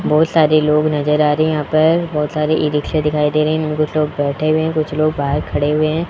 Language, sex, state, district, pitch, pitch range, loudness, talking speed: Hindi, male, Rajasthan, Jaipur, 155 Hz, 150-155 Hz, -16 LUFS, 265 wpm